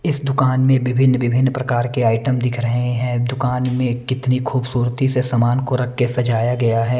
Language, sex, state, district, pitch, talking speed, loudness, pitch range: Hindi, male, Bihar, Kaimur, 125 Hz, 190 wpm, -18 LUFS, 120-130 Hz